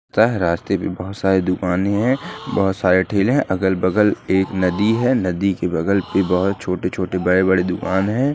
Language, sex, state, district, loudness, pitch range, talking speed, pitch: Hindi, male, Rajasthan, Nagaur, -19 LUFS, 90-100 Hz, 135 wpm, 95 Hz